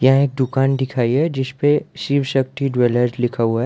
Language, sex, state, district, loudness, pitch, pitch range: Hindi, male, Gujarat, Valsad, -18 LUFS, 130 Hz, 120-140 Hz